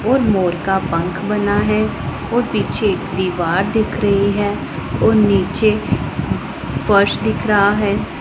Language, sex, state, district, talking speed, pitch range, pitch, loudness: Hindi, female, Punjab, Pathankot, 130 wpm, 190-215 Hz, 205 Hz, -17 LUFS